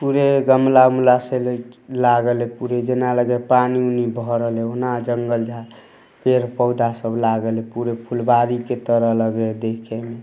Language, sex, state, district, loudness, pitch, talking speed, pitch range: Hindi, male, Bihar, Samastipur, -19 LUFS, 120 Hz, 170 wpm, 115-125 Hz